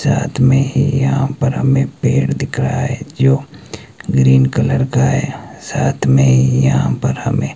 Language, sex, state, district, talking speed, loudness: Hindi, male, Himachal Pradesh, Shimla, 160 wpm, -15 LUFS